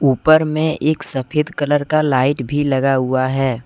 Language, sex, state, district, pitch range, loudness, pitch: Hindi, male, Jharkhand, Deoghar, 130-155 Hz, -17 LUFS, 145 Hz